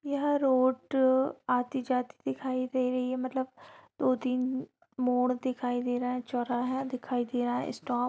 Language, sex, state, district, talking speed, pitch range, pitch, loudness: Hindi, female, Bihar, Sitamarhi, 170 wpm, 245-260 Hz, 255 Hz, -30 LUFS